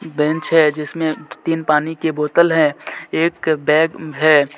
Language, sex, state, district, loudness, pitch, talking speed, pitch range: Hindi, male, Jharkhand, Deoghar, -17 LUFS, 155 Hz, 145 wpm, 150-165 Hz